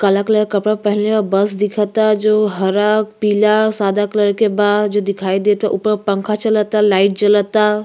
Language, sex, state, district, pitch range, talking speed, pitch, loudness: Bhojpuri, female, Uttar Pradesh, Ghazipur, 205-215 Hz, 170 wpm, 210 Hz, -15 LUFS